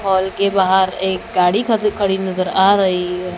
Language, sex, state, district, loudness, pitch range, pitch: Hindi, female, Maharashtra, Gondia, -16 LUFS, 185-200 Hz, 190 Hz